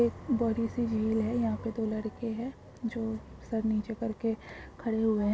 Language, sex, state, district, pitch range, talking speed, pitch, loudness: Hindi, female, Maharashtra, Dhule, 220-230 Hz, 170 wpm, 225 Hz, -32 LUFS